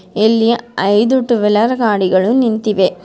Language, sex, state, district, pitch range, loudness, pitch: Kannada, female, Karnataka, Bidar, 210-235 Hz, -13 LUFS, 220 Hz